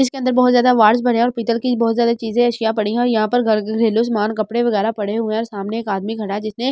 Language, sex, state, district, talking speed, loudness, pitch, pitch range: Hindi, female, Delhi, New Delhi, 295 wpm, -17 LUFS, 225 Hz, 215-240 Hz